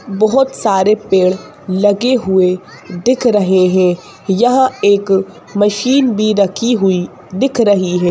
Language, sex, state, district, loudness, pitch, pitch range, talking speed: Hindi, female, Madhya Pradesh, Bhopal, -13 LUFS, 200 Hz, 185-230 Hz, 125 wpm